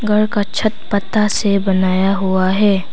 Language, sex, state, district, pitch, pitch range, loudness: Hindi, female, Arunachal Pradesh, Papum Pare, 200 Hz, 190-210 Hz, -16 LUFS